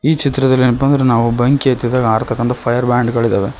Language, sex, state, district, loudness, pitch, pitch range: Kannada, male, Karnataka, Koppal, -14 LUFS, 125 Hz, 120-135 Hz